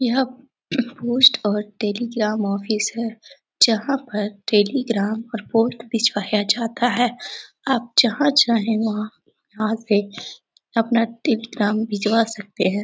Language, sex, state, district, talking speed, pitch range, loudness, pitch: Hindi, female, Bihar, Jamui, 120 wpm, 210-245 Hz, -20 LUFS, 225 Hz